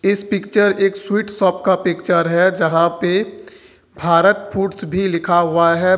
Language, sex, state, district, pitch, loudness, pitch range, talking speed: Hindi, male, Jharkhand, Ranchi, 185 Hz, -16 LUFS, 170-200 Hz, 160 wpm